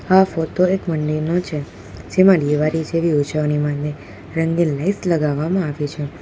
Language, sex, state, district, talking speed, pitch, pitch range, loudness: Gujarati, female, Gujarat, Valsad, 145 wpm, 155 Hz, 145-170 Hz, -19 LUFS